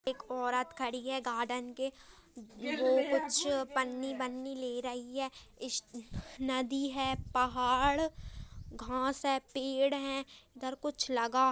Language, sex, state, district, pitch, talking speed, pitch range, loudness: Hindi, male, Uttarakhand, Tehri Garhwal, 260 Hz, 125 wpm, 250-275 Hz, -34 LUFS